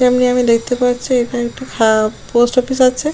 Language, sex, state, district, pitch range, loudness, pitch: Bengali, female, West Bengal, Jalpaiguri, 240-255 Hz, -15 LUFS, 245 Hz